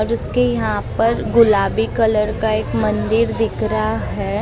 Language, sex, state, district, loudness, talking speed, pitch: Hindi, female, Maharashtra, Mumbai Suburban, -18 LUFS, 165 wpm, 195 Hz